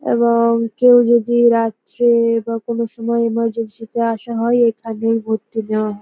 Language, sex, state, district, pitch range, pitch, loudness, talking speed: Bengali, female, West Bengal, North 24 Parganas, 225-235 Hz, 230 Hz, -16 LUFS, 150 wpm